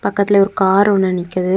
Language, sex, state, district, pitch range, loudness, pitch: Tamil, female, Tamil Nadu, Kanyakumari, 185-200 Hz, -14 LUFS, 195 Hz